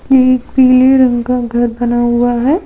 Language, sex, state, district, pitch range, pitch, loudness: Hindi, female, Jharkhand, Deoghar, 240-260 Hz, 250 Hz, -11 LUFS